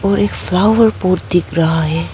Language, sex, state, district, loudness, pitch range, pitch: Hindi, female, Arunachal Pradesh, Papum Pare, -14 LUFS, 165-200 Hz, 185 Hz